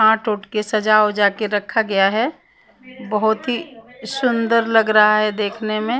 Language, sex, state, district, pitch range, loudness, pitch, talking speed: Hindi, female, Punjab, Pathankot, 210-230 Hz, -18 LUFS, 220 Hz, 180 wpm